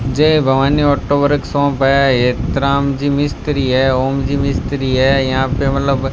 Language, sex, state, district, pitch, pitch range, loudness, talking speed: Hindi, male, Rajasthan, Bikaner, 140 Hz, 135-140 Hz, -15 LUFS, 165 wpm